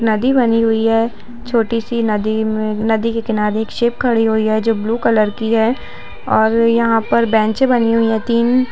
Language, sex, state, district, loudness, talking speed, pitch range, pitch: Hindi, female, Bihar, East Champaran, -15 LUFS, 185 wpm, 220-235 Hz, 225 Hz